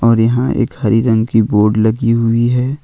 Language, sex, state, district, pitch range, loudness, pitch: Hindi, male, Jharkhand, Ranchi, 110-120 Hz, -13 LUFS, 115 Hz